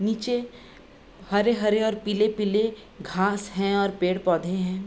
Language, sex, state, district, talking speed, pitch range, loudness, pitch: Hindi, female, Bihar, Vaishali, 110 wpm, 190-215 Hz, -25 LUFS, 205 Hz